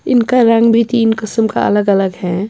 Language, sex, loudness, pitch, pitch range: Urdu, female, -13 LUFS, 225 Hz, 205-230 Hz